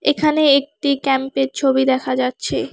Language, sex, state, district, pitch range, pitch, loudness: Bengali, female, West Bengal, Alipurduar, 265-285 Hz, 270 Hz, -17 LUFS